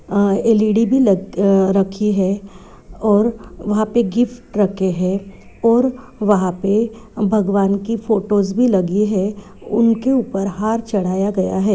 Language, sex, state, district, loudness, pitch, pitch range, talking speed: Hindi, female, Bihar, Sitamarhi, -17 LUFS, 205 Hz, 195-225 Hz, 145 wpm